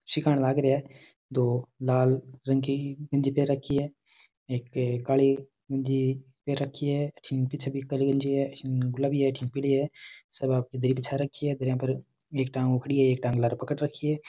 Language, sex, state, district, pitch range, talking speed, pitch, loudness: Rajasthani, male, Rajasthan, Churu, 130-140 Hz, 90 wpm, 135 Hz, -28 LUFS